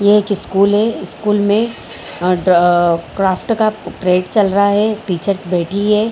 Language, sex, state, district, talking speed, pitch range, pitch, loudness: Hindi, female, Bihar, Lakhisarai, 165 wpm, 180-210 Hz, 200 Hz, -15 LUFS